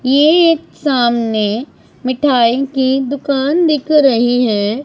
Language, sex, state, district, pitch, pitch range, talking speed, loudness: Hindi, female, Punjab, Pathankot, 265 Hz, 240-290 Hz, 110 wpm, -13 LUFS